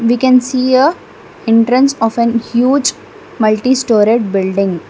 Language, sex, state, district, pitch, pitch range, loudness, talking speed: English, female, Karnataka, Bangalore, 235 Hz, 220-255 Hz, -12 LUFS, 135 wpm